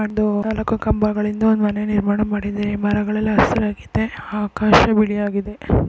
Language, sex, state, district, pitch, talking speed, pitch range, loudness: Kannada, female, Karnataka, Chamarajanagar, 210 Hz, 120 wpm, 205-215 Hz, -19 LUFS